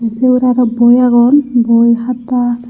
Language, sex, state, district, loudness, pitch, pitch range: Chakma, female, Tripura, Unakoti, -11 LUFS, 245 Hz, 235-250 Hz